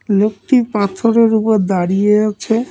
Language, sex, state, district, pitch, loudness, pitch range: Bengali, male, West Bengal, Cooch Behar, 215 Hz, -14 LUFS, 205-230 Hz